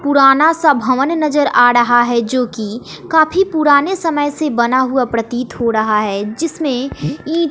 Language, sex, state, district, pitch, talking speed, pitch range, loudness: Hindi, female, Bihar, West Champaran, 270 Hz, 170 wpm, 240-305 Hz, -14 LUFS